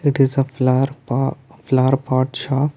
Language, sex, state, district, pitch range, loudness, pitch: English, male, Karnataka, Bangalore, 130-140 Hz, -19 LUFS, 135 Hz